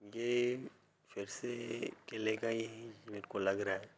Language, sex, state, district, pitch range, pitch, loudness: Hindi, male, Bihar, Begusarai, 105-115 Hz, 115 Hz, -39 LUFS